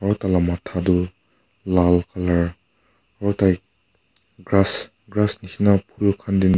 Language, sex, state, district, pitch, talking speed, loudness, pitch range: Nagamese, male, Nagaland, Kohima, 95 Hz, 120 wpm, -21 LUFS, 90-100 Hz